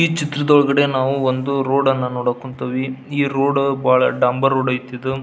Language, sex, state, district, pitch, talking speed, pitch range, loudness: Kannada, male, Karnataka, Belgaum, 135 Hz, 150 wpm, 130-140 Hz, -18 LUFS